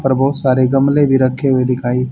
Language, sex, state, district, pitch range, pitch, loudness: Hindi, male, Haryana, Jhajjar, 130-135 Hz, 130 Hz, -14 LUFS